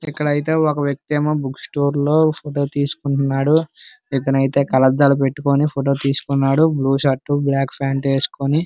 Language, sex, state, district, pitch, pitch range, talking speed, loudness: Telugu, male, Andhra Pradesh, Srikakulam, 140 Hz, 135-150 Hz, 145 wpm, -18 LUFS